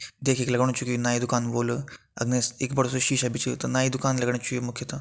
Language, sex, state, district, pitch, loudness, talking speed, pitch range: Hindi, male, Uttarakhand, Tehri Garhwal, 125 Hz, -26 LUFS, 300 wpm, 120-130 Hz